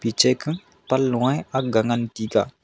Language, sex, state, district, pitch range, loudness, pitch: Wancho, male, Arunachal Pradesh, Longding, 115-135 Hz, -22 LUFS, 125 Hz